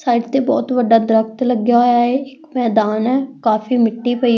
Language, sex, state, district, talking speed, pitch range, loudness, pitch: Punjabi, female, Punjab, Fazilka, 205 wpm, 230-255 Hz, -16 LUFS, 245 Hz